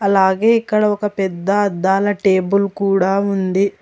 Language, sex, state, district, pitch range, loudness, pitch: Telugu, female, Telangana, Hyderabad, 190-205 Hz, -16 LUFS, 200 Hz